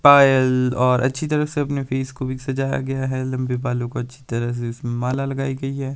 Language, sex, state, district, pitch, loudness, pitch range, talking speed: Hindi, male, Himachal Pradesh, Shimla, 130 Hz, -21 LUFS, 125-135 Hz, 230 wpm